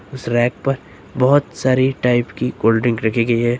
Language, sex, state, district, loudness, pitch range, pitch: Hindi, male, Uttar Pradesh, Lucknow, -18 LUFS, 115-130 Hz, 120 Hz